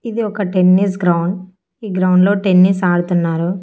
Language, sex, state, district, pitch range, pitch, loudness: Telugu, female, Andhra Pradesh, Annamaya, 180-195 Hz, 185 Hz, -15 LUFS